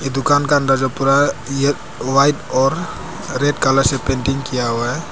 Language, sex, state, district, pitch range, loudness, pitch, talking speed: Hindi, male, Arunachal Pradesh, Papum Pare, 135-145 Hz, -17 LUFS, 135 Hz, 165 wpm